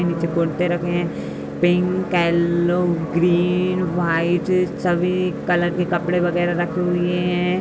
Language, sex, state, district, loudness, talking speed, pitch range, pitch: Hindi, female, Uttar Pradesh, Budaun, -20 LUFS, 125 wpm, 175-180 Hz, 175 Hz